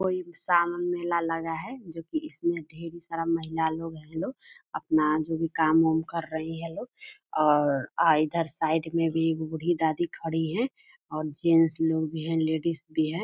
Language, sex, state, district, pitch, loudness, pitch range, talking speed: Hindi, female, Bihar, Purnia, 165 Hz, -27 LUFS, 160-170 Hz, 185 wpm